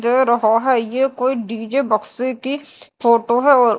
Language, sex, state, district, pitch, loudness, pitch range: Hindi, female, Madhya Pradesh, Dhar, 250 Hz, -17 LUFS, 230-260 Hz